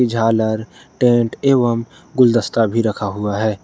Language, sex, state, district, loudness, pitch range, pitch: Hindi, male, Jharkhand, Garhwa, -17 LUFS, 110-120 Hz, 115 Hz